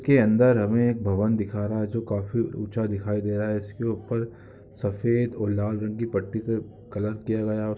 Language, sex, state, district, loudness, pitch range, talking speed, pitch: Hindi, male, Andhra Pradesh, Guntur, -26 LUFS, 105-115 Hz, 200 wpm, 110 Hz